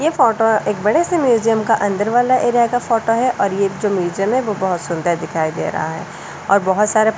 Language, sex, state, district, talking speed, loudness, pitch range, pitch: Hindi, female, Delhi, New Delhi, 240 wpm, -17 LUFS, 195-235 Hz, 210 Hz